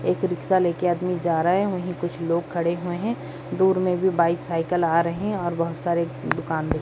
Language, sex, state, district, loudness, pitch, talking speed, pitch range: Hindi, female, Bihar, Jahanabad, -24 LUFS, 175 Hz, 245 wpm, 170-180 Hz